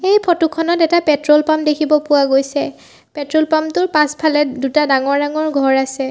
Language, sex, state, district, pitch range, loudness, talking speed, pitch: Assamese, female, Assam, Sonitpur, 285-315 Hz, -15 LUFS, 175 wpm, 300 Hz